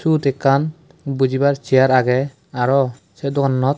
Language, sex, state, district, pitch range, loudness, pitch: Chakma, male, Tripura, West Tripura, 130-140 Hz, -18 LUFS, 135 Hz